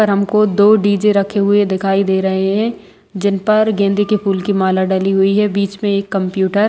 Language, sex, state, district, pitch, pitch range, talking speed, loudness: Hindi, female, Bihar, Begusarai, 200 Hz, 195-205 Hz, 215 wpm, -15 LUFS